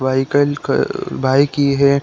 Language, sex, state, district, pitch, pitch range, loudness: Hindi, male, Uttar Pradesh, Deoria, 140 Hz, 135-145 Hz, -16 LUFS